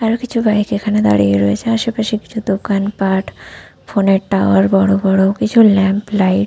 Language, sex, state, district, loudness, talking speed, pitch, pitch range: Bengali, female, West Bengal, Paschim Medinipur, -14 LUFS, 175 wpm, 200 Hz, 195-220 Hz